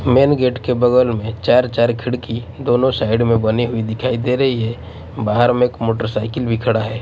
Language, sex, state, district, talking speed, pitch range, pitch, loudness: Hindi, male, Odisha, Nuapada, 205 wpm, 110-125 Hz, 120 Hz, -17 LUFS